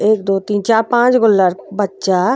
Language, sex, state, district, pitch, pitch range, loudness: Bhojpuri, female, Uttar Pradesh, Gorakhpur, 205 Hz, 195-225 Hz, -14 LUFS